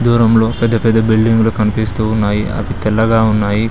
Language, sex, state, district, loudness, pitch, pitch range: Telugu, male, Telangana, Mahabubabad, -14 LUFS, 110 Hz, 110-115 Hz